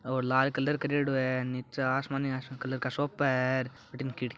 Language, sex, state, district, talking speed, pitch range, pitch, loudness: Marwari, male, Rajasthan, Churu, 180 wpm, 130-135 Hz, 130 Hz, -31 LUFS